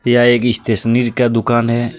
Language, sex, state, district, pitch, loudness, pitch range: Hindi, male, Jharkhand, Deoghar, 120 Hz, -14 LUFS, 115-120 Hz